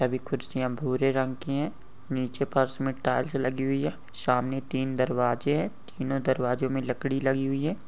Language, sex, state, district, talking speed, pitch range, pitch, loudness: Hindi, male, Maharashtra, Nagpur, 185 wpm, 130-135 Hz, 130 Hz, -28 LUFS